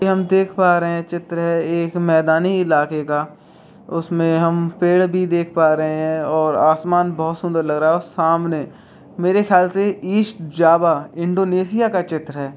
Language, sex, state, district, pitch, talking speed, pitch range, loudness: Hindi, male, Bihar, Begusarai, 170 Hz, 180 wpm, 160-180 Hz, -18 LUFS